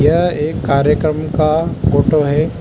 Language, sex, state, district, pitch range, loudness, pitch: Hindi, male, Mizoram, Aizawl, 140-155 Hz, -15 LUFS, 150 Hz